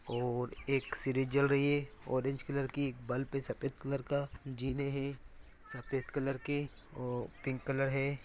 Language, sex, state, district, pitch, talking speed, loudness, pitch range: Hindi, male, Maharashtra, Solapur, 135 Hz, 175 wpm, -36 LUFS, 130-140 Hz